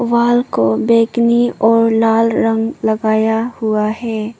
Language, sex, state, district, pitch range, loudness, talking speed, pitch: Hindi, female, Arunachal Pradesh, Papum Pare, 220-235 Hz, -14 LUFS, 120 wpm, 225 Hz